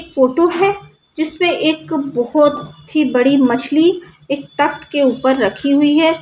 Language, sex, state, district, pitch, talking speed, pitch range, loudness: Hindi, female, Bihar, Saran, 295 Hz, 155 wpm, 270-320 Hz, -15 LUFS